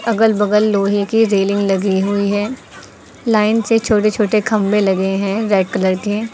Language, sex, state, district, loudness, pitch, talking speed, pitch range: Hindi, female, Uttar Pradesh, Lucknow, -16 LUFS, 210 Hz, 170 wpm, 195-215 Hz